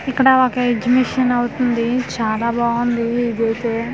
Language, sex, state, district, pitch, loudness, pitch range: Telugu, female, Andhra Pradesh, Manyam, 240 Hz, -17 LUFS, 235-250 Hz